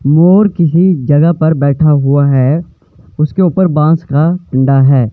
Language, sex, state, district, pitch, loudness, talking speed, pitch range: Hindi, male, Himachal Pradesh, Shimla, 155 Hz, -10 LUFS, 150 wpm, 140-170 Hz